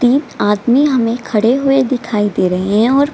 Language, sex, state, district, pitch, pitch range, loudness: Hindi, female, Bihar, Gaya, 240 Hz, 210-265 Hz, -14 LUFS